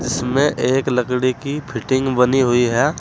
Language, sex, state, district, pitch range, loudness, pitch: Hindi, male, Uttar Pradesh, Saharanpur, 125-135 Hz, -18 LUFS, 130 Hz